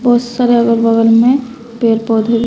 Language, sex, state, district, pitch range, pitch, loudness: Hindi, female, Bihar, West Champaran, 230-245 Hz, 235 Hz, -12 LUFS